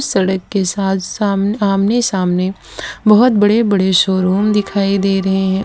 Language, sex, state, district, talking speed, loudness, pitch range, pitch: Hindi, female, Gujarat, Valsad, 150 wpm, -14 LUFS, 190-205 Hz, 195 Hz